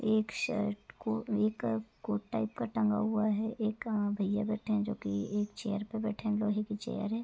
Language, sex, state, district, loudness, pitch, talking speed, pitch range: Hindi, female, Uttar Pradesh, Gorakhpur, -34 LUFS, 215 Hz, 205 wpm, 205-220 Hz